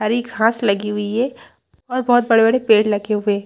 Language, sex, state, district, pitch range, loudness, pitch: Hindi, female, Chhattisgarh, Rajnandgaon, 210-240 Hz, -17 LUFS, 220 Hz